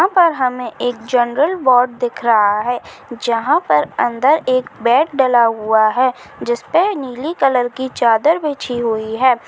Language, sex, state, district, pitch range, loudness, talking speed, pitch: Chhattisgarhi, female, Chhattisgarh, Kabirdham, 235-270 Hz, -16 LUFS, 165 wpm, 245 Hz